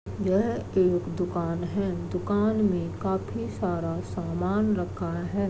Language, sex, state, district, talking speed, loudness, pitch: Hindi, female, Uttar Pradesh, Gorakhpur, 120 wpm, -28 LUFS, 175 Hz